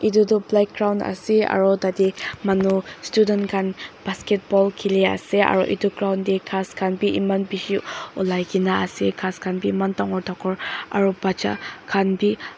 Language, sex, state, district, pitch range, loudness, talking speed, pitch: Nagamese, female, Nagaland, Dimapur, 190-200 Hz, -22 LUFS, 160 wpm, 195 Hz